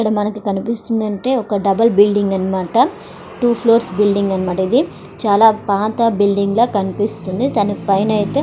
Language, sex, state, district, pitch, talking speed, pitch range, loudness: Telugu, female, Andhra Pradesh, Srikakulam, 205 Hz, 155 wpm, 200-230 Hz, -16 LUFS